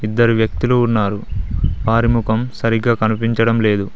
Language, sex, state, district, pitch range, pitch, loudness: Telugu, male, Telangana, Mahabubabad, 105-115 Hz, 115 Hz, -17 LUFS